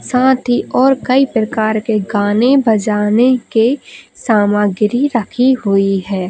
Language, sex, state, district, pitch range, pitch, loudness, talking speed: Hindi, female, Bihar, Lakhisarai, 210-255 Hz, 225 Hz, -14 LUFS, 125 wpm